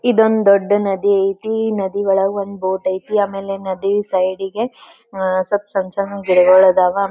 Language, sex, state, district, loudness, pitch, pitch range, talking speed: Kannada, female, Karnataka, Belgaum, -16 LUFS, 195 Hz, 190-205 Hz, 160 wpm